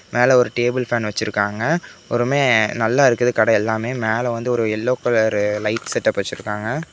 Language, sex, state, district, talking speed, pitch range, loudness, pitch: Tamil, male, Tamil Nadu, Namakkal, 145 wpm, 110-125 Hz, -19 LUFS, 115 Hz